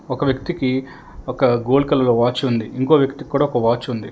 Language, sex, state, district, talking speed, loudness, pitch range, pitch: Telugu, male, Telangana, Hyderabad, 190 wpm, -18 LUFS, 120-140 Hz, 130 Hz